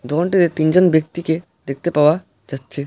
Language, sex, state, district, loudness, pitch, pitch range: Bengali, male, West Bengal, Alipurduar, -17 LUFS, 160 Hz, 145-175 Hz